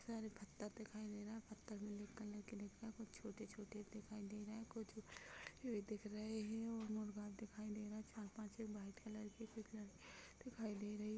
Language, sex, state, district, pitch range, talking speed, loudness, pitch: Hindi, female, Chhattisgarh, Rajnandgaon, 210-220 Hz, 230 wpm, -52 LUFS, 215 Hz